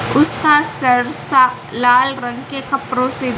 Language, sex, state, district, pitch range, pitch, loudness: Hindi, female, Karnataka, Bangalore, 250-275 Hz, 255 Hz, -15 LUFS